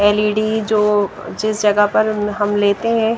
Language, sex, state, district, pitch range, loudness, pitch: Hindi, female, Punjab, Kapurthala, 205-215 Hz, -17 LUFS, 210 Hz